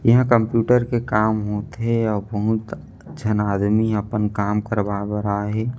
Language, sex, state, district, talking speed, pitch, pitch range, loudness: Chhattisgarhi, male, Chhattisgarh, Rajnandgaon, 165 wpm, 110 Hz, 105-115 Hz, -21 LUFS